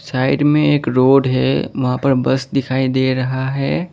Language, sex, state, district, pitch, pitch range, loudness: Hindi, male, Assam, Kamrup Metropolitan, 130 Hz, 130-135 Hz, -16 LUFS